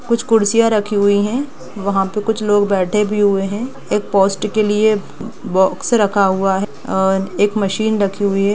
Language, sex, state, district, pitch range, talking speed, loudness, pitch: Hindi, female, Bihar, East Champaran, 195-215 Hz, 190 wpm, -16 LUFS, 205 Hz